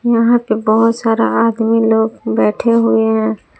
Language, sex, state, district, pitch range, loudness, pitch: Hindi, female, Jharkhand, Palamu, 220-230 Hz, -14 LUFS, 225 Hz